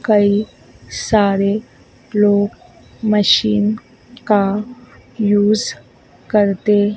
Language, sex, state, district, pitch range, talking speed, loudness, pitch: Hindi, female, Madhya Pradesh, Dhar, 205-215 Hz, 60 wpm, -16 LUFS, 210 Hz